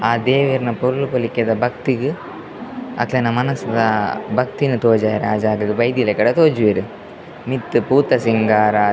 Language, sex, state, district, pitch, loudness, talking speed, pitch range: Tulu, male, Karnataka, Dakshina Kannada, 120 Hz, -17 LUFS, 115 wpm, 110-130 Hz